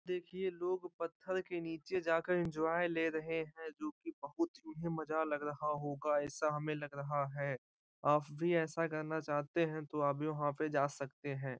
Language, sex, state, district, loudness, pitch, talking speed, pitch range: Hindi, male, Bihar, Gaya, -38 LUFS, 160 Hz, 195 wpm, 145-170 Hz